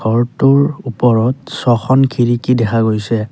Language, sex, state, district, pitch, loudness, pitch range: Assamese, male, Assam, Kamrup Metropolitan, 120 Hz, -14 LUFS, 115-135 Hz